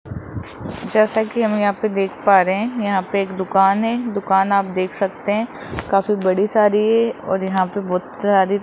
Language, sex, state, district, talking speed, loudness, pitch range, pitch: Hindi, male, Rajasthan, Jaipur, 200 wpm, -18 LUFS, 190-215 Hz, 200 Hz